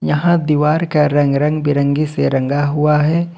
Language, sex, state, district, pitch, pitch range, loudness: Hindi, male, Jharkhand, Ranchi, 150 Hz, 145-155 Hz, -15 LUFS